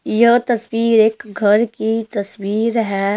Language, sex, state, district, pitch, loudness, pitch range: Hindi, female, Himachal Pradesh, Shimla, 220 Hz, -17 LUFS, 205-230 Hz